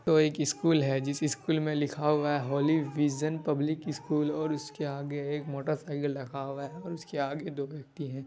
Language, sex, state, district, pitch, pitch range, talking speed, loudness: Hindi, male, Bihar, Kishanganj, 150 Hz, 140-155 Hz, 225 wpm, -31 LUFS